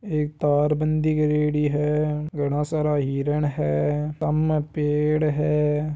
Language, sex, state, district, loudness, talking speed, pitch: Marwari, male, Rajasthan, Nagaur, -23 LUFS, 120 wpm, 150 Hz